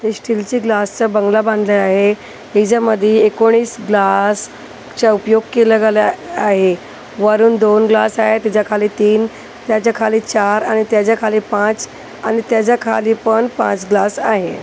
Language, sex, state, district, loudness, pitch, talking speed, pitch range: Marathi, female, Maharashtra, Gondia, -14 LUFS, 220 Hz, 145 wpm, 210-225 Hz